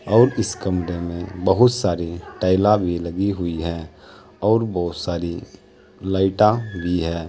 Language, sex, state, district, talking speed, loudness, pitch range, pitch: Hindi, male, Uttar Pradesh, Saharanpur, 130 wpm, -21 LUFS, 85-100 Hz, 95 Hz